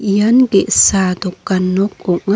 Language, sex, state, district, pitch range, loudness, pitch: Garo, female, Meghalaya, North Garo Hills, 185-205 Hz, -13 LUFS, 195 Hz